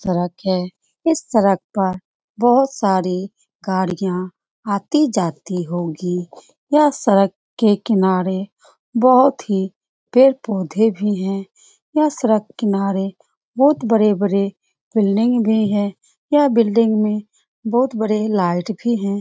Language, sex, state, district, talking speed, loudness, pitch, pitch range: Hindi, female, Bihar, Lakhisarai, 110 wpm, -18 LUFS, 205 Hz, 190-230 Hz